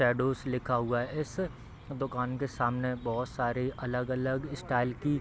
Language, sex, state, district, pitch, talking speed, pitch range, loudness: Hindi, male, Bihar, East Champaran, 125 Hz, 175 wpm, 120-135 Hz, -32 LUFS